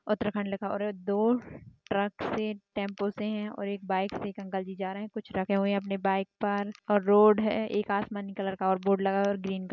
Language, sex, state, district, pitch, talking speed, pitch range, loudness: Hindi, female, Uttarakhand, Tehri Garhwal, 200 Hz, 260 wpm, 195-210 Hz, -30 LUFS